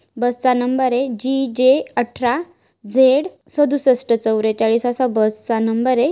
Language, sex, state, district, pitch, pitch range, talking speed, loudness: Marathi, female, Maharashtra, Dhule, 250 Hz, 230-265 Hz, 125 wpm, -17 LUFS